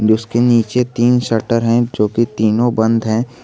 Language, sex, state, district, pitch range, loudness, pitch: Hindi, male, Jharkhand, Garhwa, 110-120 Hz, -15 LUFS, 115 Hz